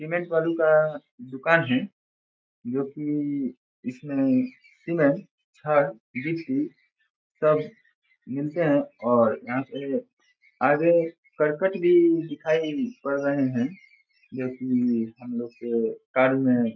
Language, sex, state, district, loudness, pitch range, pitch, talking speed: Hindi, male, Bihar, Saran, -25 LUFS, 130-170 Hz, 150 Hz, 110 wpm